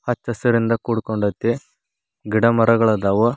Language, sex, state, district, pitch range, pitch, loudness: Kannada, male, Karnataka, Koppal, 110-120 Hz, 115 Hz, -19 LUFS